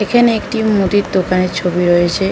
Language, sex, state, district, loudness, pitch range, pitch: Bengali, female, West Bengal, North 24 Parganas, -14 LUFS, 180-215 Hz, 195 Hz